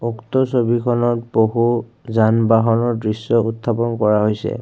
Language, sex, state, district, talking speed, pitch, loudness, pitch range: Assamese, male, Assam, Kamrup Metropolitan, 115 wpm, 115 Hz, -18 LUFS, 110-120 Hz